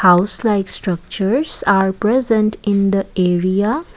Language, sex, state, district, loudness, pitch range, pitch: English, female, Assam, Kamrup Metropolitan, -16 LUFS, 190-215 Hz, 200 Hz